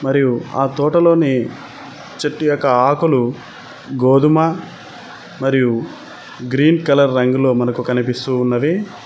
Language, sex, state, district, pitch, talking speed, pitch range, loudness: Telugu, male, Telangana, Mahabubabad, 135 Hz, 95 wpm, 125-150 Hz, -16 LUFS